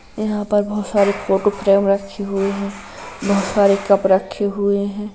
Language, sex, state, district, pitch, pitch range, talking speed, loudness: Hindi, female, Uttar Pradesh, Hamirpur, 200 Hz, 195-205 Hz, 175 wpm, -18 LUFS